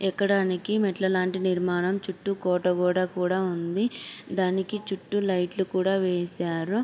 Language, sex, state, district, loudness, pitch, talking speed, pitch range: Telugu, female, Andhra Pradesh, Srikakulam, -26 LUFS, 185 Hz, 115 wpm, 180-195 Hz